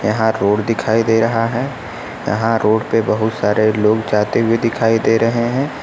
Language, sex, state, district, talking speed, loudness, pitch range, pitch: Hindi, male, Uttar Pradesh, Lucknow, 185 wpm, -16 LUFS, 110-115 Hz, 115 Hz